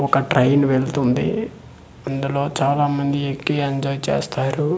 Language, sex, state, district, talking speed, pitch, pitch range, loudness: Telugu, male, Andhra Pradesh, Manyam, 100 wpm, 140 Hz, 135-140 Hz, -20 LUFS